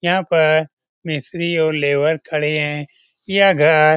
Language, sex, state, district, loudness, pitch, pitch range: Hindi, male, Bihar, Lakhisarai, -17 LUFS, 155 Hz, 150-170 Hz